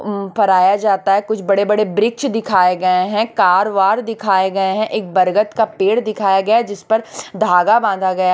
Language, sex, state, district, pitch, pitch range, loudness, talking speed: Hindi, female, Chhattisgarh, Raipur, 200 Hz, 190-215 Hz, -15 LUFS, 195 wpm